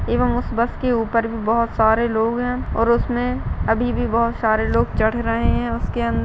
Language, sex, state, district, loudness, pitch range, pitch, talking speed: Hindi, female, Bihar, Madhepura, -20 LUFS, 225-240 Hz, 230 Hz, 210 wpm